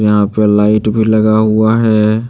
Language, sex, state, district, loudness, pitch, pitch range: Hindi, male, Jharkhand, Deoghar, -11 LUFS, 110 Hz, 105-110 Hz